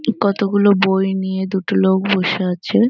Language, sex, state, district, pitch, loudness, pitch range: Bengali, female, West Bengal, North 24 Parganas, 190 Hz, -17 LUFS, 190-200 Hz